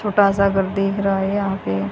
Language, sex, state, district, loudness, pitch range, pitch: Hindi, female, Haryana, Jhajjar, -19 LUFS, 195-200 Hz, 195 Hz